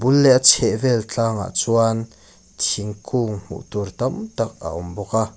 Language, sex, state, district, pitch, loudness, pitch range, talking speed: Mizo, male, Mizoram, Aizawl, 115 Hz, -20 LUFS, 100-125 Hz, 180 wpm